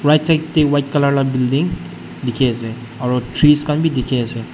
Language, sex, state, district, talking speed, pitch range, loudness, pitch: Nagamese, male, Nagaland, Dimapur, 200 wpm, 120-150 Hz, -17 LUFS, 130 Hz